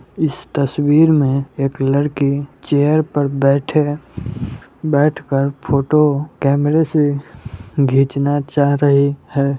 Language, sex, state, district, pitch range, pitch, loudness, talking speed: Hindi, male, Bihar, Muzaffarpur, 140-150 Hz, 140 Hz, -16 LUFS, 110 wpm